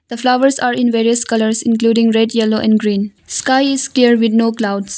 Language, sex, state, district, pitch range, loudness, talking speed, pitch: English, female, Arunachal Pradesh, Longding, 220-245 Hz, -14 LUFS, 205 wpm, 230 Hz